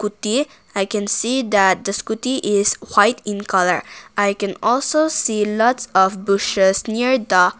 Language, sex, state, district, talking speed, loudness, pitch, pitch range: English, female, Nagaland, Kohima, 160 wpm, -18 LUFS, 210 Hz, 195-240 Hz